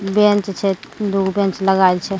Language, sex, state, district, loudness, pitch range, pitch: Maithili, female, Bihar, Begusarai, -17 LUFS, 190-200 Hz, 195 Hz